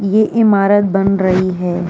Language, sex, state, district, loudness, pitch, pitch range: Hindi, female, Uttar Pradesh, Jyotiba Phule Nagar, -13 LUFS, 195 Hz, 185-205 Hz